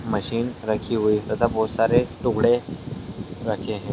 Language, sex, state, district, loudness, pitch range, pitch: Hindi, male, Bihar, Purnia, -23 LUFS, 105-120 Hz, 115 Hz